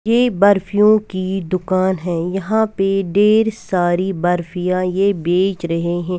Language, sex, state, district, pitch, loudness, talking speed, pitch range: Hindi, female, Punjab, Fazilka, 190 Hz, -17 LUFS, 135 wpm, 180-205 Hz